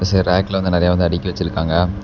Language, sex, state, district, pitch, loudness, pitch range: Tamil, male, Tamil Nadu, Namakkal, 90 Hz, -17 LUFS, 90-95 Hz